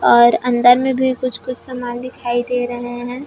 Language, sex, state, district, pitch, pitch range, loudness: Chhattisgarhi, female, Chhattisgarh, Raigarh, 245 Hz, 245-255 Hz, -17 LUFS